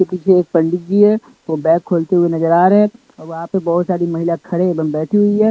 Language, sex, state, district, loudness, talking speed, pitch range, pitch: Hindi, male, Punjab, Pathankot, -15 LUFS, 260 wpm, 165-200 Hz, 175 Hz